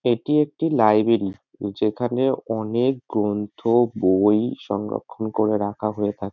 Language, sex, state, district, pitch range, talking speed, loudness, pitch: Bengali, male, West Bengal, North 24 Parganas, 105-120 Hz, 135 wpm, -22 LUFS, 110 Hz